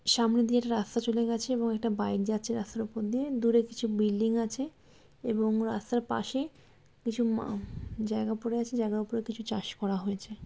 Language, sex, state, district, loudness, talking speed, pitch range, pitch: Bengali, female, West Bengal, Malda, -31 LUFS, 160 wpm, 215-235 Hz, 225 Hz